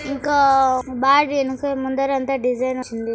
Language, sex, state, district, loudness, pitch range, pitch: Telugu, female, Andhra Pradesh, Anantapur, -19 LUFS, 255-280 Hz, 270 Hz